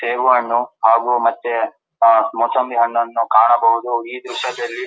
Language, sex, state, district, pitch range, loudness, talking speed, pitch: Kannada, male, Karnataka, Dharwad, 115-125 Hz, -16 LUFS, 125 wpm, 120 Hz